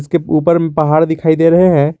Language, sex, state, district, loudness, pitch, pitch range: Hindi, male, Jharkhand, Garhwa, -12 LUFS, 160 Hz, 155-170 Hz